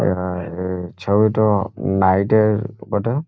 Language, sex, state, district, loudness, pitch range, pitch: Bengali, male, West Bengal, Jhargram, -19 LUFS, 90-110 Hz, 100 Hz